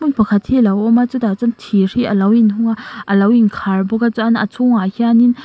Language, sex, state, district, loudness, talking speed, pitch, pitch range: Mizo, female, Mizoram, Aizawl, -14 LUFS, 265 wpm, 225 Hz, 205-235 Hz